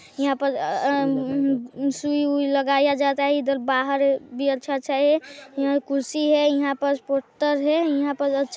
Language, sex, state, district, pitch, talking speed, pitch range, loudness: Hindi, female, Chhattisgarh, Sarguja, 280 Hz, 175 wpm, 275-285 Hz, -22 LUFS